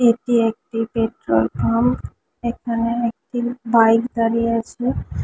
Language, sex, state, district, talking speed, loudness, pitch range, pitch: Bengali, female, West Bengal, Kolkata, 105 wpm, -20 LUFS, 225-235 Hz, 230 Hz